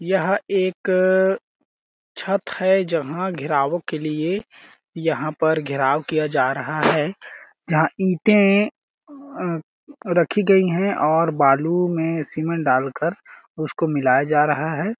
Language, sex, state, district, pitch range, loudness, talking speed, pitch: Hindi, male, Chhattisgarh, Balrampur, 155-190 Hz, -20 LUFS, 130 wpm, 165 Hz